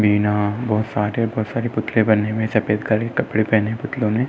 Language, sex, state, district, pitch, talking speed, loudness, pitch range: Hindi, male, Uttar Pradesh, Muzaffarnagar, 110 Hz, 195 wpm, -20 LUFS, 105-115 Hz